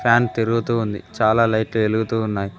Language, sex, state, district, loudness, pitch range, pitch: Telugu, male, Telangana, Mahabubabad, -20 LUFS, 110-115 Hz, 110 Hz